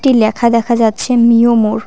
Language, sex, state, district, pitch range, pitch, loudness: Bengali, female, West Bengal, Cooch Behar, 220-235 Hz, 235 Hz, -11 LUFS